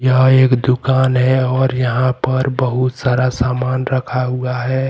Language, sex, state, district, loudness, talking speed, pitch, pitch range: Hindi, male, Jharkhand, Deoghar, -15 LUFS, 160 wpm, 130 Hz, 125-130 Hz